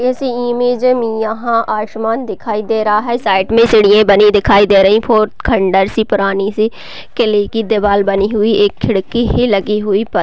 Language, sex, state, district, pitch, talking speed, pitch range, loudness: Hindi, female, Chhattisgarh, Raigarh, 215 Hz, 190 wpm, 205-230 Hz, -13 LUFS